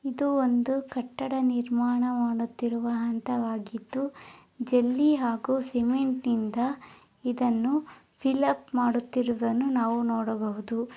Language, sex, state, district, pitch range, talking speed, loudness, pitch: Kannada, female, Karnataka, Raichur, 235-265 Hz, 85 wpm, -28 LUFS, 245 Hz